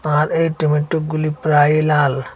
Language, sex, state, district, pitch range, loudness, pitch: Bengali, male, Assam, Hailakandi, 150-155 Hz, -17 LUFS, 155 Hz